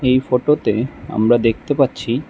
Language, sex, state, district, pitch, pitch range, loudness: Bengali, male, Tripura, West Tripura, 130 Hz, 120-135 Hz, -17 LUFS